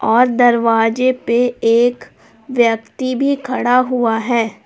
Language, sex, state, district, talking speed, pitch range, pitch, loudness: Hindi, female, Jharkhand, Palamu, 115 wpm, 230-255 Hz, 240 Hz, -15 LUFS